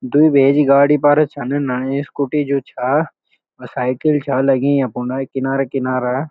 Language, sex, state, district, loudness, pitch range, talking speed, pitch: Garhwali, male, Uttarakhand, Uttarkashi, -16 LUFS, 130-145 Hz, 160 wpm, 140 Hz